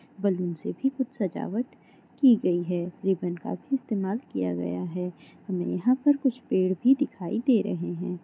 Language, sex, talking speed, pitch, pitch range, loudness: Maithili, female, 180 wpm, 190 Hz, 180-250 Hz, -27 LUFS